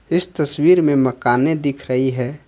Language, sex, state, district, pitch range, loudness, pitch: Hindi, male, Jharkhand, Ranchi, 130-155 Hz, -17 LUFS, 140 Hz